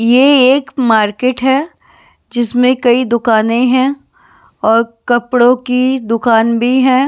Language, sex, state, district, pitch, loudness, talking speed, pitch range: Hindi, female, Bihar, West Champaran, 250 Hz, -12 LUFS, 120 wpm, 235-260 Hz